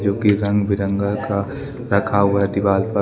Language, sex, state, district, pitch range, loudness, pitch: Hindi, male, Jharkhand, Deoghar, 100-105 Hz, -19 LUFS, 100 Hz